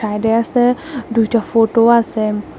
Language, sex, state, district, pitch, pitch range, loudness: Bengali, female, Tripura, West Tripura, 230 Hz, 220-235 Hz, -15 LUFS